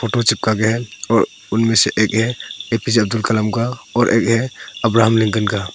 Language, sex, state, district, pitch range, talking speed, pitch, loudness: Hindi, male, Arunachal Pradesh, Papum Pare, 110-115 Hz, 200 wpm, 115 Hz, -17 LUFS